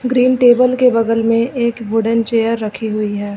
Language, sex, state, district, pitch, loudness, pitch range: Hindi, female, Uttar Pradesh, Lucknow, 230 Hz, -14 LUFS, 225-245 Hz